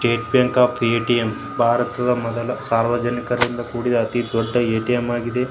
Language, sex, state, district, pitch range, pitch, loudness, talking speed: Kannada, male, Karnataka, Bijapur, 115-125 Hz, 120 Hz, -20 LUFS, 120 wpm